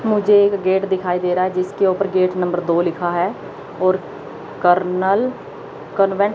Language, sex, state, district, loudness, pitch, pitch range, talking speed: Hindi, female, Chandigarh, Chandigarh, -18 LUFS, 185 Hz, 180-200 Hz, 170 wpm